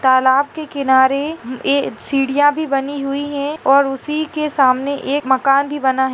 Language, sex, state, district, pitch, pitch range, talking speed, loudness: Hindi, female, Chhattisgarh, Rajnandgaon, 275 Hz, 265-290 Hz, 185 wpm, -17 LUFS